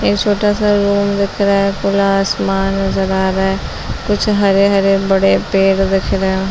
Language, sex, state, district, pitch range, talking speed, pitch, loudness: Hindi, female, Chhattisgarh, Balrampur, 195-200 Hz, 185 wpm, 195 Hz, -14 LUFS